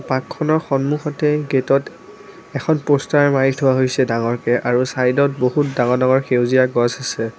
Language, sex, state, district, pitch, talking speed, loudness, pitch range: Assamese, female, Assam, Kamrup Metropolitan, 130 Hz, 140 wpm, -17 LUFS, 125-145 Hz